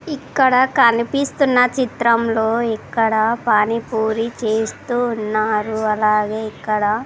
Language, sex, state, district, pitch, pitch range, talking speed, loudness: Telugu, female, Andhra Pradesh, Sri Satya Sai, 230 Hz, 220-245 Hz, 85 wpm, -18 LUFS